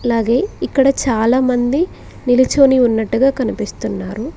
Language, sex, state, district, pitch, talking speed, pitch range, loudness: Telugu, female, Telangana, Mahabubabad, 255 Hz, 80 wpm, 240-270 Hz, -15 LUFS